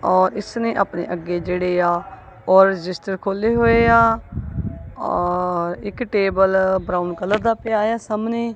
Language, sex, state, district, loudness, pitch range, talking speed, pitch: Punjabi, female, Punjab, Kapurthala, -19 LUFS, 180-225 Hz, 155 wpm, 195 Hz